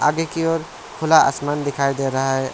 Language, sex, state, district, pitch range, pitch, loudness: Hindi, male, West Bengal, Alipurduar, 135-160 Hz, 145 Hz, -20 LUFS